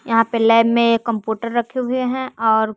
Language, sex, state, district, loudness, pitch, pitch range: Hindi, male, Bihar, West Champaran, -18 LUFS, 230 Hz, 230-245 Hz